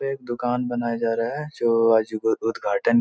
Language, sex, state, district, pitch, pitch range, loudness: Hindi, male, Bihar, Supaul, 115 Hz, 115-120 Hz, -23 LUFS